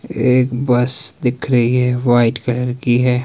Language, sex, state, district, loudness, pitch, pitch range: Hindi, male, Himachal Pradesh, Shimla, -16 LUFS, 125 Hz, 120-125 Hz